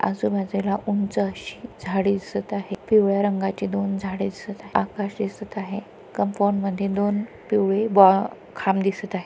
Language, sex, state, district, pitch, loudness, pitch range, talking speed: Marathi, female, Maharashtra, Pune, 200 Hz, -23 LUFS, 195-205 Hz, 155 wpm